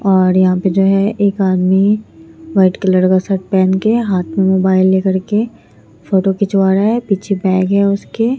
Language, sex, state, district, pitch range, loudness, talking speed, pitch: Hindi, female, Bihar, Katihar, 185-200 Hz, -14 LUFS, 185 wpm, 190 Hz